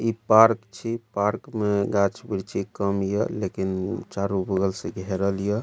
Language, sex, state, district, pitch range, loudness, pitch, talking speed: Maithili, male, Bihar, Supaul, 95-110 Hz, -24 LUFS, 100 Hz, 170 wpm